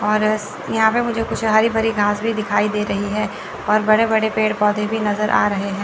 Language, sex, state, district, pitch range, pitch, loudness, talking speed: Hindi, female, Chandigarh, Chandigarh, 210-220 Hz, 215 Hz, -18 LUFS, 235 wpm